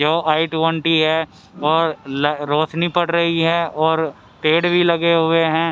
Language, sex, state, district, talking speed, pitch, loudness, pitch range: Hindi, male, Haryana, Rohtak, 155 wpm, 165 Hz, -18 LUFS, 155-165 Hz